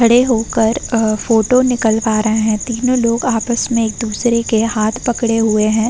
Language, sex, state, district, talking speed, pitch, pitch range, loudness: Hindi, female, Uttar Pradesh, Varanasi, 175 wpm, 230 Hz, 220-240 Hz, -15 LUFS